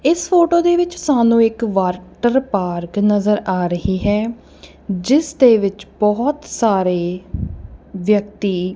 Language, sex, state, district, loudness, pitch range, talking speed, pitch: Punjabi, female, Punjab, Kapurthala, -17 LUFS, 190-255 Hz, 125 wpm, 210 Hz